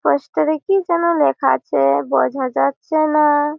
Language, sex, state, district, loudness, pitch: Bengali, female, West Bengal, Malda, -17 LUFS, 295 Hz